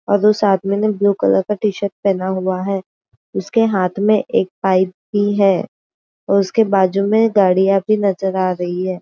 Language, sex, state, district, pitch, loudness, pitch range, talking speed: Hindi, female, Maharashtra, Aurangabad, 195 Hz, -16 LUFS, 185-205 Hz, 185 wpm